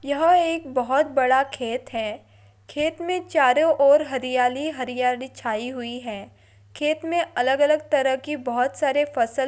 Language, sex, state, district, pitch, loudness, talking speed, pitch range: Hindi, female, Maharashtra, Dhule, 265 Hz, -22 LUFS, 160 wpm, 245-300 Hz